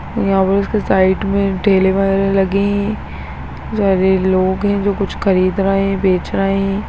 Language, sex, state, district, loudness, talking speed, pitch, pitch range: Hindi, male, Bihar, Gaya, -15 LUFS, 175 wpm, 195 Hz, 190-200 Hz